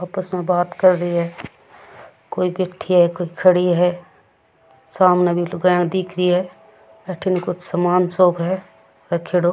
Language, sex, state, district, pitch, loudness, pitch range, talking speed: Rajasthani, female, Rajasthan, Churu, 180 Hz, -18 LUFS, 175-185 Hz, 165 wpm